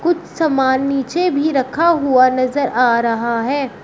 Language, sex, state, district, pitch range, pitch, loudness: Hindi, female, Uttar Pradesh, Shamli, 255-310 Hz, 270 Hz, -16 LUFS